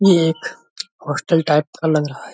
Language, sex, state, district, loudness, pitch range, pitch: Hindi, female, Uttar Pradesh, Budaun, -18 LUFS, 150-175 Hz, 160 Hz